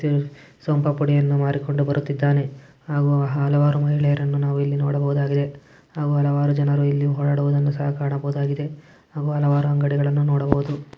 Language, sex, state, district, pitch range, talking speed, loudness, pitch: Kannada, male, Karnataka, Gulbarga, 140-145 Hz, 120 wpm, -21 LUFS, 145 Hz